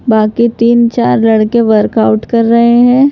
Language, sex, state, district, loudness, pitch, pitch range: Hindi, female, Madhya Pradesh, Bhopal, -9 LUFS, 230 Hz, 220-235 Hz